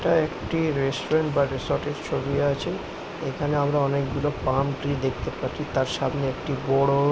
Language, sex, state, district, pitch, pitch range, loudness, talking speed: Bengali, male, West Bengal, Jhargram, 140 Hz, 135-145 Hz, -25 LUFS, 170 wpm